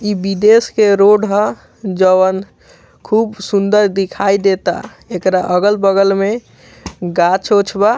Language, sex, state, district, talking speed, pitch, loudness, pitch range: Bhojpuri, male, Bihar, Muzaffarpur, 120 wpm, 200 Hz, -13 LUFS, 190-210 Hz